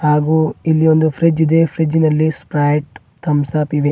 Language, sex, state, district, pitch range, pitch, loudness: Kannada, male, Karnataka, Bidar, 150-160 Hz, 155 Hz, -15 LUFS